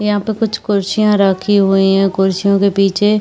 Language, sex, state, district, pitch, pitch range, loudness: Chhattisgarhi, female, Chhattisgarh, Rajnandgaon, 200 Hz, 195-210 Hz, -13 LUFS